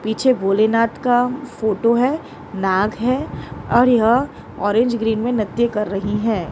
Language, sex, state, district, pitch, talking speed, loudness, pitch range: Hindi, male, Maharashtra, Mumbai Suburban, 230 Hz, 145 wpm, -18 LUFS, 210-245 Hz